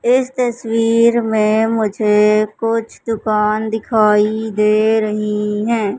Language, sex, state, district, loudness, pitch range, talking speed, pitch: Hindi, male, Madhya Pradesh, Katni, -15 LUFS, 210-230 Hz, 100 wpm, 220 Hz